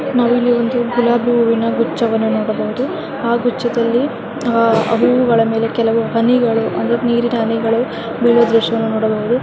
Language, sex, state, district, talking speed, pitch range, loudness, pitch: Kannada, female, Karnataka, Dharwad, 120 wpm, 225-240 Hz, -15 LUFS, 235 Hz